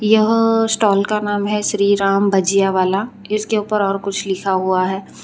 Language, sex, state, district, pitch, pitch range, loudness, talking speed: Hindi, female, Gujarat, Valsad, 200 Hz, 195-215 Hz, -17 LUFS, 185 wpm